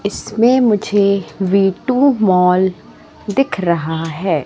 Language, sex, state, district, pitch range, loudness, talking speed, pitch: Hindi, female, Madhya Pradesh, Katni, 180-220 Hz, -15 LUFS, 110 wpm, 200 Hz